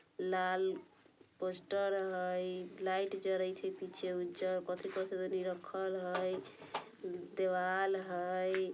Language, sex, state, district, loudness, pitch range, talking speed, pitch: Bajjika, female, Bihar, Vaishali, -38 LUFS, 185-190 Hz, 90 wpm, 185 Hz